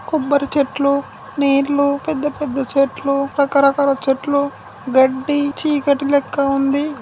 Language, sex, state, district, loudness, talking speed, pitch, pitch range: Telugu, female, Telangana, Karimnagar, -17 LUFS, 110 wpm, 280 Hz, 275-285 Hz